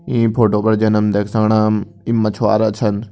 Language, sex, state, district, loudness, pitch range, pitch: Kumaoni, male, Uttarakhand, Tehri Garhwal, -16 LUFS, 105-110 Hz, 110 Hz